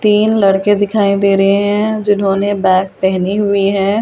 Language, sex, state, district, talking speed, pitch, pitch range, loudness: Hindi, female, Delhi, New Delhi, 195 wpm, 200 Hz, 195-205 Hz, -13 LUFS